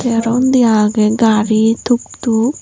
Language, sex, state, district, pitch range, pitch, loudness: Chakma, female, Tripura, Unakoti, 220-245 Hz, 230 Hz, -13 LUFS